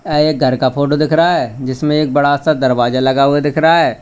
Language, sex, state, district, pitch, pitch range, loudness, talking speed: Hindi, male, Uttar Pradesh, Lalitpur, 145 Hz, 130-155 Hz, -13 LUFS, 270 wpm